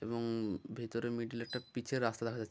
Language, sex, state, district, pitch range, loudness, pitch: Bengali, male, West Bengal, Jhargram, 115-120 Hz, -39 LUFS, 115 Hz